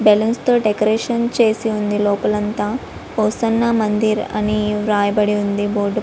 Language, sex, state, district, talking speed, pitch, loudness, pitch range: Telugu, female, Andhra Pradesh, Visakhapatnam, 140 wpm, 215 Hz, -18 LUFS, 210-225 Hz